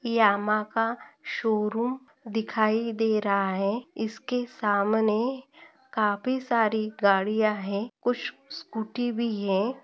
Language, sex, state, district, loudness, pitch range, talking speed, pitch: Hindi, female, Maharashtra, Aurangabad, -27 LUFS, 210-240 Hz, 105 wpm, 220 Hz